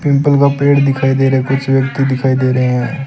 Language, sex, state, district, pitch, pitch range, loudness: Hindi, male, Rajasthan, Bikaner, 135 Hz, 130-140 Hz, -13 LUFS